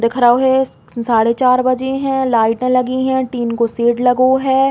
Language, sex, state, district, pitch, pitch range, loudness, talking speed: Bundeli, female, Uttar Pradesh, Hamirpur, 255 Hz, 235-260 Hz, -15 LUFS, 205 wpm